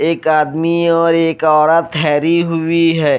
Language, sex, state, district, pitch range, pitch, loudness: Hindi, male, Odisha, Malkangiri, 155-165 Hz, 165 Hz, -13 LUFS